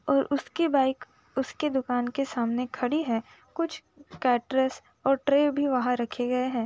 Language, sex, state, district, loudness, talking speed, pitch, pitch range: Hindi, female, Uttar Pradesh, Jalaun, -27 LUFS, 170 wpm, 265 Hz, 245-285 Hz